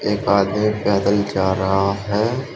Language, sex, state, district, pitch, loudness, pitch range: Hindi, male, Uttar Pradesh, Shamli, 100 Hz, -19 LUFS, 100-105 Hz